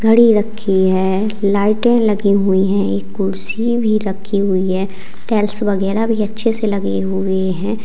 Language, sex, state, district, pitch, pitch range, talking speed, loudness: Hindi, female, Uttar Pradesh, Lalitpur, 200 Hz, 190-215 Hz, 160 wpm, -16 LUFS